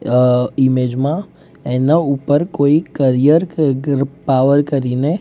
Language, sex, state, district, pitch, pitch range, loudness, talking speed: Gujarati, male, Gujarat, Gandhinagar, 140 Hz, 130-150 Hz, -15 LUFS, 90 wpm